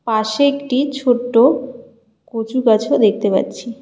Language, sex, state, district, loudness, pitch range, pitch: Bengali, female, West Bengal, Cooch Behar, -16 LUFS, 220-260 Hz, 240 Hz